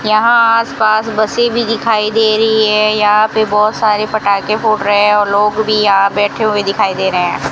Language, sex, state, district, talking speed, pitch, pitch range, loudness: Hindi, female, Rajasthan, Bikaner, 215 wpm, 215 Hz, 205-220 Hz, -12 LUFS